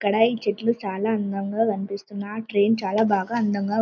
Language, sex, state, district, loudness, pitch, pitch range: Telugu, female, Telangana, Karimnagar, -24 LUFS, 210 Hz, 200-220 Hz